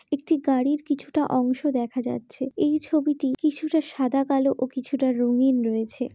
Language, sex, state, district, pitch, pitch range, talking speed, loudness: Bengali, female, West Bengal, Jhargram, 270 Hz, 255-295 Hz, 145 wpm, -24 LUFS